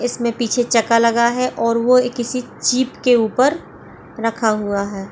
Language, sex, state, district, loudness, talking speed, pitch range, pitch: Hindi, female, Bihar, Sitamarhi, -17 LUFS, 175 wpm, 230-250 Hz, 235 Hz